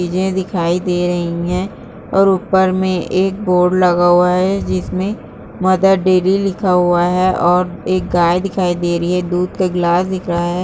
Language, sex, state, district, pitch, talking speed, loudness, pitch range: Hindi, female, Uttarakhand, Uttarkashi, 180 Hz, 190 wpm, -15 LUFS, 175-185 Hz